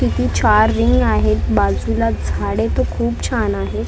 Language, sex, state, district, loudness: Marathi, female, Maharashtra, Mumbai Suburban, -17 LUFS